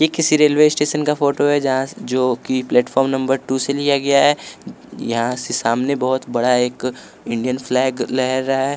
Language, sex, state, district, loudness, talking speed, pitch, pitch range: Hindi, male, Bihar, West Champaran, -18 LUFS, 190 wpm, 130 Hz, 125-140 Hz